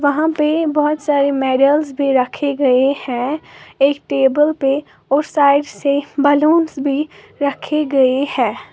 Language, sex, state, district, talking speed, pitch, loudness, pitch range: Hindi, female, Uttar Pradesh, Lalitpur, 135 wpm, 285 Hz, -16 LUFS, 270-300 Hz